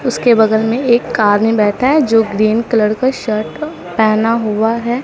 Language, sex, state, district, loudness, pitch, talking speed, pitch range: Hindi, female, Bihar, Katihar, -13 LUFS, 225 Hz, 190 wpm, 215-240 Hz